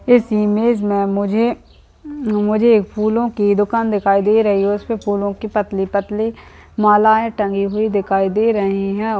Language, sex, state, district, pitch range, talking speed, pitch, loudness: Hindi, female, West Bengal, Dakshin Dinajpur, 200-220 Hz, 165 wpm, 210 Hz, -17 LUFS